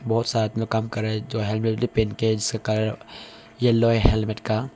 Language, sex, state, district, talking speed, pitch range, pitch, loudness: Hindi, male, Arunachal Pradesh, Longding, 225 wpm, 110-115 Hz, 110 Hz, -23 LUFS